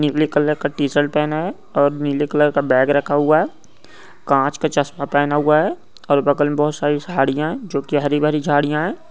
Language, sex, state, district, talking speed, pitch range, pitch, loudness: Hindi, male, Goa, North and South Goa, 215 wpm, 145-150 Hz, 145 Hz, -18 LUFS